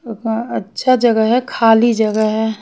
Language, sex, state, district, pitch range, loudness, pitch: Hindi, female, Haryana, Charkhi Dadri, 220-240 Hz, -15 LUFS, 225 Hz